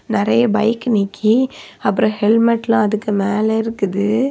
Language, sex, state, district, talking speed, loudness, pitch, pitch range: Tamil, female, Tamil Nadu, Kanyakumari, 110 wpm, -17 LUFS, 220 Hz, 210-230 Hz